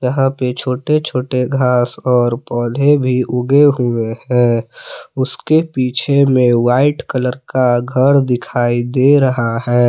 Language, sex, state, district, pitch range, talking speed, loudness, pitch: Hindi, male, Jharkhand, Palamu, 120-135 Hz, 135 wpm, -14 LUFS, 125 Hz